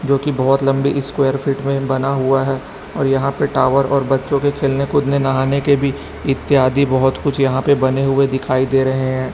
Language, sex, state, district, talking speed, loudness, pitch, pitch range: Hindi, male, Chhattisgarh, Raipur, 210 wpm, -16 LUFS, 135 Hz, 135-140 Hz